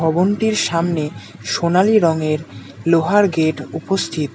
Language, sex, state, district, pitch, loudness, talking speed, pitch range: Bengali, male, West Bengal, Alipurduar, 165 Hz, -17 LUFS, 95 wpm, 155-185 Hz